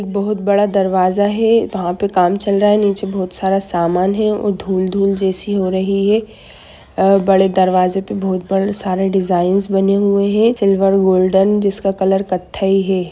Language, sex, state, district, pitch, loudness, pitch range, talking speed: Hindi, female, Jharkhand, Sahebganj, 195 Hz, -15 LUFS, 190-200 Hz, 170 wpm